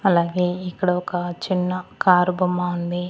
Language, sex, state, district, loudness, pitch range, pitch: Telugu, female, Andhra Pradesh, Annamaya, -22 LUFS, 180-185 Hz, 180 Hz